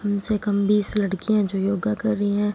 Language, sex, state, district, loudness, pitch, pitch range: Hindi, female, Punjab, Fazilka, -22 LUFS, 205 Hz, 195-210 Hz